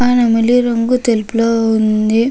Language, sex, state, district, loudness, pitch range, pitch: Telugu, female, Andhra Pradesh, Krishna, -13 LUFS, 225-245 Hz, 230 Hz